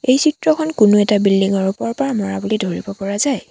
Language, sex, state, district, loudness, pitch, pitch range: Assamese, female, Assam, Sonitpur, -17 LUFS, 210 Hz, 195-270 Hz